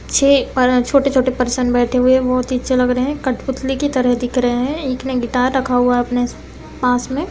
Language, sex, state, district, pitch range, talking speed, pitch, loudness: Hindi, female, Bihar, Samastipur, 245-265 Hz, 230 wpm, 255 Hz, -16 LUFS